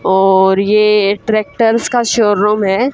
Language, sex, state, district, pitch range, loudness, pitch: Hindi, female, Haryana, Charkhi Dadri, 195-225 Hz, -12 LUFS, 210 Hz